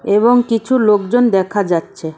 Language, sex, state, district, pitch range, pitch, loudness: Bengali, female, West Bengal, Cooch Behar, 190-240 Hz, 210 Hz, -14 LUFS